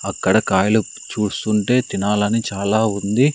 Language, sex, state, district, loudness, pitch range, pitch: Telugu, male, Andhra Pradesh, Sri Satya Sai, -19 LUFS, 100-115 Hz, 105 Hz